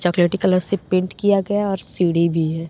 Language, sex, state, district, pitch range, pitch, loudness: Hindi, female, Bihar, Gopalganj, 175-200 Hz, 185 Hz, -19 LUFS